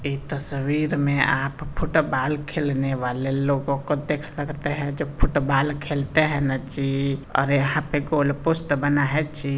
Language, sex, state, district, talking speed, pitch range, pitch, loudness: Hindi, male, Bihar, Saran, 165 wpm, 135-150 Hz, 145 Hz, -23 LUFS